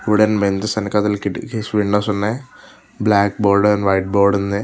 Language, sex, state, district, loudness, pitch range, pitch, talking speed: Telugu, male, Andhra Pradesh, Visakhapatnam, -17 LUFS, 100-105 Hz, 105 Hz, 155 wpm